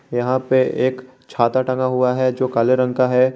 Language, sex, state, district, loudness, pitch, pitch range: Hindi, male, Jharkhand, Garhwa, -18 LUFS, 130 Hz, 125-130 Hz